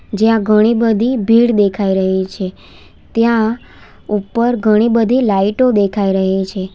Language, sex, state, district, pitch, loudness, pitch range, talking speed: Gujarati, female, Gujarat, Valsad, 215 Hz, -14 LUFS, 195-230 Hz, 135 wpm